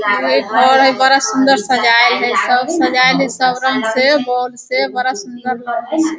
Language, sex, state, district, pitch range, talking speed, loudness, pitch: Hindi, female, Bihar, Sitamarhi, 240-265 Hz, 195 wpm, -13 LUFS, 255 Hz